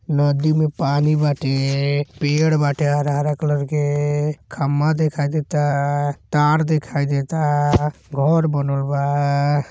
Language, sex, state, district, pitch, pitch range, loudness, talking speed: Bhojpuri, male, Uttar Pradesh, Gorakhpur, 145 Hz, 140-150 Hz, -19 LUFS, 105 wpm